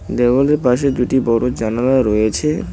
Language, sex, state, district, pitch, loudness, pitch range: Bengali, male, West Bengal, Cooch Behar, 125 Hz, -16 LUFS, 115-135 Hz